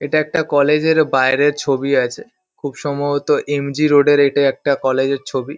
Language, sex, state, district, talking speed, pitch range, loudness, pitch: Bengali, male, West Bengal, Kolkata, 195 wpm, 135-150 Hz, -16 LUFS, 145 Hz